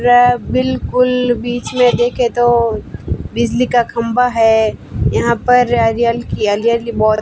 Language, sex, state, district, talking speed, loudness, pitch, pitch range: Hindi, female, Rajasthan, Barmer, 125 wpm, -14 LUFS, 240 Hz, 230-245 Hz